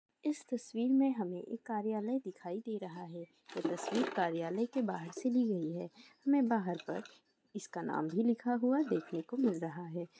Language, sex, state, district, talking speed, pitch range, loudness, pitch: Hindi, female, Bihar, Madhepura, 190 wpm, 175-250 Hz, -36 LUFS, 215 Hz